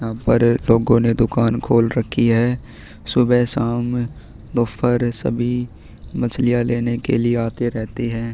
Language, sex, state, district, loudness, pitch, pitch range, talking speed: Hindi, male, Chhattisgarh, Sukma, -18 LUFS, 120 Hz, 115-120 Hz, 135 wpm